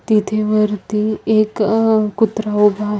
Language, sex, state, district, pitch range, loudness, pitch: Marathi, female, Maharashtra, Solapur, 210-215 Hz, -16 LUFS, 215 Hz